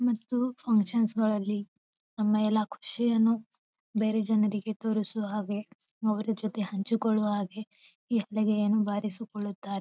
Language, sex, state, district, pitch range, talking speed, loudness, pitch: Kannada, female, Karnataka, Bijapur, 210-225 Hz, 85 wpm, -29 LUFS, 215 Hz